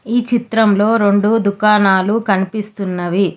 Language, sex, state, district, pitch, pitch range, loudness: Telugu, female, Telangana, Hyderabad, 205 Hz, 195-225 Hz, -14 LUFS